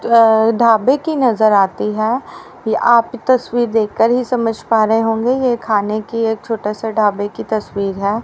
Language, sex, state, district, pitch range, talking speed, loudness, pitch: Hindi, female, Haryana, Rohtak, 215-240 Hz, 180 wpm, -15 LUFS, 225 Hz